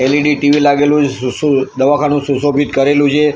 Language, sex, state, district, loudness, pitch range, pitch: Gujarati, male, Gujarat, Gandhinagar, -13 LUFS, 140-145 Hz, 145 Hz